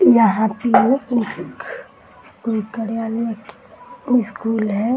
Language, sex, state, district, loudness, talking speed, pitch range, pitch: Hindi, female, Bihar, Muzaffarpur, -19 LUFS, 95 wpm, 220-245 Hz, 225 Hz